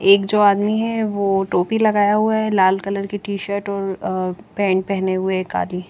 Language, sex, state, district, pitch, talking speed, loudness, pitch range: Hindi, female, Chandigarh, Chandigarh, 200 Hz, 215 wpm, -19 LUFS, 190-205 Hz